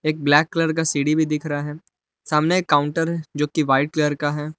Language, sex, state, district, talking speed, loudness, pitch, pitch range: Hindi, male, Jharkhand, Palamu, 250 wpm, -20 LUFS, 150 Hz, 145-160 Hz